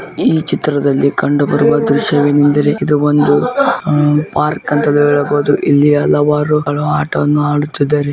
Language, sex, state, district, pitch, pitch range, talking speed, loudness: Kannada, male, Karnataka, Bijapur, 145 Hz, 145-150 Hz, 125 wpm, -13 LUFS